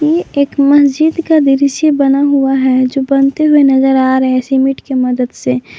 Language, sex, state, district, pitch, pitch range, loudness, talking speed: Hindi, female, Jharkhand, Palamu, 275 Hz, 260-285 Hz, -11 LUFS, 195 wpm